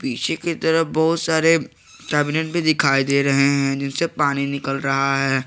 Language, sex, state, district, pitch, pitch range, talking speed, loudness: Hindi, male, Jharkhand, Garhwa, 140 Hz, 135-160 Hz, 175 wpm, -19 LUFS